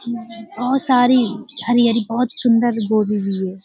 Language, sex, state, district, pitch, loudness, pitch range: Hindi, female, Uttar Pradesh, Budaun, 235 Hz, -17 LUFS, 215-245 Hz